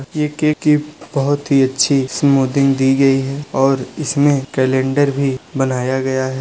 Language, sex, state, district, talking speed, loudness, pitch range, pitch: Hindi, male, Uttar Pradesh, Budaun, 160 wpm, -16 LUFS, 130-145 Hz, 135 Hz